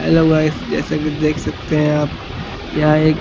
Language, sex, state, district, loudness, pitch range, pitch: Hindi, male, Bihar, Katihar, -17 LUFS, 150-155 Hz, 155 Hz